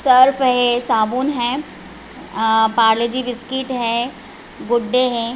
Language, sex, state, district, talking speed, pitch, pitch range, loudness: Hindi, female, Chhattisgarh, Raigarh, 125 wpm, 245 Hz, 230-255 Hz, -17 LUFS